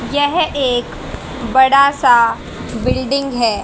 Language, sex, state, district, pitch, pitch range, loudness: Hindi, female, Haryana, Jhajjar, 265 Hz, 240-275 Hz, -14 LUFS